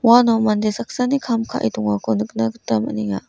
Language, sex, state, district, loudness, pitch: Garo, female, Meghalaya, West Garo Hills, -20 LUFS, 210 Hz